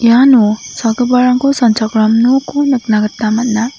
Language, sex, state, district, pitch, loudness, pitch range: Garo, female, Meghalaya, South Garo Hills, 235 Hz, -12 LUFS, 220-250 Hz